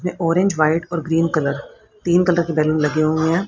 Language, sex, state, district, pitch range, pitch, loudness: Hindi, female, Haryana, Rohtak, 155-175 Hz, 165 Hz, -18 LUFS